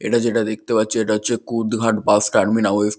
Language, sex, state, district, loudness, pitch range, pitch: Bengali, male, West Bengal, Kolkata, -19 LUFS, 105-115 Hz, 110 Hz